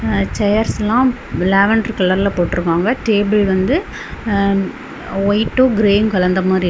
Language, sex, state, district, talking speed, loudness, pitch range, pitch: Tamil, female, Tamil Nadu, Kanyakumari, 100 wpm, -16 LUFS, 185-215 Hz, 200 Hz